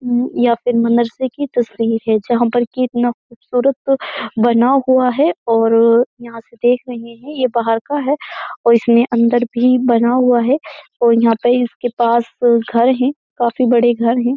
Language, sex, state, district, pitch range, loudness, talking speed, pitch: Hindi, female, Uttar Pradesh, Jyotiba Phule Nagar, 235-255 Hz, -15 LUFS, 175 wpm, 240 Hz